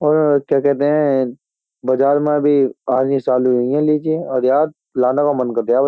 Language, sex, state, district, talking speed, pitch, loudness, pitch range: Hindi, male, Uttar Pradesh, Jyotiba Phule Nagar, 225 wpm, 140 Hz, -16 LUFS, 130-150 Hz